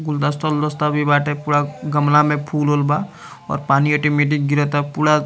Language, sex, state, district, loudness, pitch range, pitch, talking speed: Bhojpuri, male, Bihar, Muzaffarpur, -18 LUFS, 145-150 Hz, 150 Hz, 170 wpm